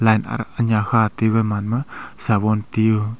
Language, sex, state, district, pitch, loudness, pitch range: Wancho, male, Arunachal Pradesh, Longding, 110 Hz, -18 LUFS, 105-115 Hz